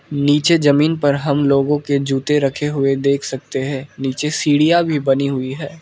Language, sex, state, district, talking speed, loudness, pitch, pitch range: Hindi, male, Arunachal Pradesh, Lower Dibang Valley, 185 wpm, -17 LUFS, 145 Hz, 135-150 Hz